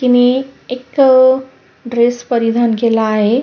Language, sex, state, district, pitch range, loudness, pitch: Marathi, female, Maharashtra, Sindhudurg, 235-260 Hz, -13 LUFS, 245 Hz